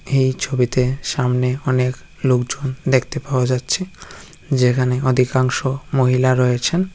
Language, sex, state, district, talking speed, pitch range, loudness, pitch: Bengali, male, West Bengal, Jalpaiguri, 70 wpm, 125-135 Hz, -18 LUFS, 130 Hz